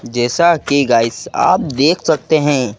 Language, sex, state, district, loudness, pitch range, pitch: Hindi, male, Madhya Pradesh, Bhopal, -14 LUFS, 120-155 Hz, 140 Hz